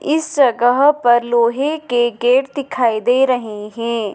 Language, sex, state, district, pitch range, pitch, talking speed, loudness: Hindi, female, Madhya Pradesh, Dhar, 235-275 Hz, 245 Hz, 145 wpm, -16 LUFS